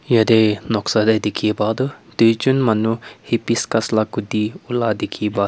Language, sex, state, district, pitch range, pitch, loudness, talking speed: Nagamese, male, Nagaland, Kohima, 105-115 Hz, 110 Hz, -18 LUFS, 155 wpm